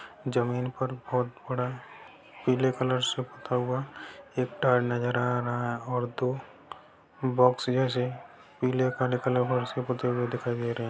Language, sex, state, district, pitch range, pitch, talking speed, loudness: Hindi, male, Bihar, Sitamarhi, 125-130 Hz, 125 Hz, 155 wpm, -29 LUFS